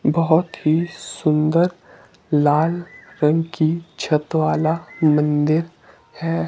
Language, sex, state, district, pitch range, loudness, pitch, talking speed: Hindi, male, Himachal Pradesh, Shimla, 150-170 Hz, -20 LUFS, 160 Hz, 90 wpm